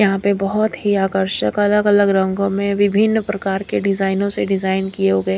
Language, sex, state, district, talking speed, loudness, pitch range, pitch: Hindi, female, Punjab, Kapurthala, 190 wpm, -17 LUFS, 190-205 Hz, 195 Hz